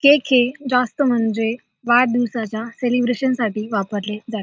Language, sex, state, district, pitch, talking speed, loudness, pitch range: Marathi, female, Maharashtra, Dhule, 240 Hz, 120 wpm, -19 LUFS, 220-250 Hz